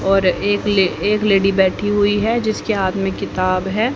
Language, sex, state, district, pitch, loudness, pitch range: Hindi, female, Haryana, Jhajjar, 200 Hz, -17 LUFS, 190-210 Hz